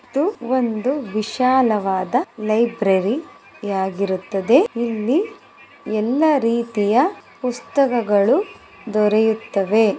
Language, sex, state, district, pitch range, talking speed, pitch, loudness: Kannada, female, Karnataka, Mysore, 205-255 Hz, 65 wpm, 225 Hz, -19 LUFS